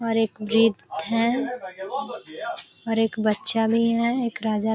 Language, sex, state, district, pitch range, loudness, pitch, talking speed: Hindi, female, Uttar Pradesh, Jalaun, 220-230 Hz, -23 LUFS, 225 Hz, 165 wpm